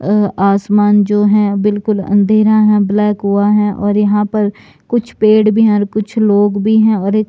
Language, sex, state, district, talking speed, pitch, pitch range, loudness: Hindi, male, Himachal Pradesh, Shimla, 200 wpm, 210 Hz, 205-215 Hz, -12 LUFS